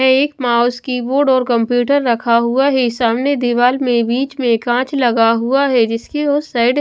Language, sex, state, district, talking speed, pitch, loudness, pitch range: Hindi, female, Maharashtra, Washim, 185 wpm, 245 Hz, -15 LUFS, 235-270 Hz